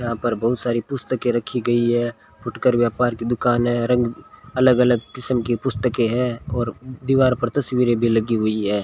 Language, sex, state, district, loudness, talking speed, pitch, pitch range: Hindi, male, Rajasthan, Bikaner, -20 LUFS, 190 wpm, 120 Hz, 120-125 Hz